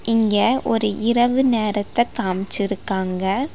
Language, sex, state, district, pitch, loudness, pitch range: Tamil, female, Tamil Nadu, Nilgiris, 220 Hz, -19 LUFS, 200-240 Hz